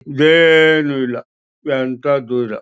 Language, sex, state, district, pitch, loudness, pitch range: Kannada, male, Karnataka, Mysore, 140 Hz, -14 LUFS, 130-155 Hz